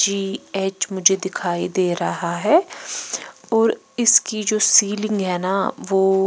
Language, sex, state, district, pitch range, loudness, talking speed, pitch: Hindi, female, Punjab, Pathankot, 185-215 Hz, -19 LUFS, 125 wpm, 195 Hz